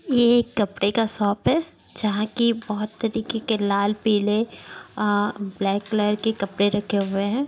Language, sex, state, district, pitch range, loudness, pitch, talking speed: Hindi, female, Bihar, Gaya, 205-225 Hz, -23 LUFS, 210 Hz, 170 wpm